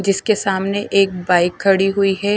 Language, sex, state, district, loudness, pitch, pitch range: Hindi, female, Punjab, Kapurthala, -17 LUFS, 195 Hz, 190-200 Hz